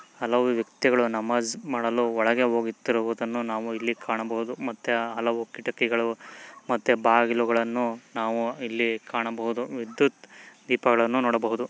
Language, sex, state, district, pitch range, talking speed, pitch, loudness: Kannada, male, Karnataka, Mysore, 115-120 Hz, 90 wpm, 115 Hz, -26 LUFS